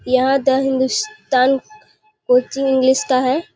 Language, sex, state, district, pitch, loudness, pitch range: Hindi, female, Bihar, Muzaffarpur, 265 Hz, -17 LUFS, 260-315 Hz